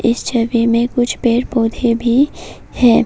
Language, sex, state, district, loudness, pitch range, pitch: Hindi, female, Assam, Kamrup Metropolitan, -15 LUFS, 235-245 Hz, 235 Hz